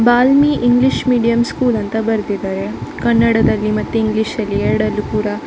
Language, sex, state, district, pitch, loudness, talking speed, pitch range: Kannada, female, Karnataka, Dakshina Kannada, 230 Hz, -15 LUFS, 120 wpm, 215-245 Hz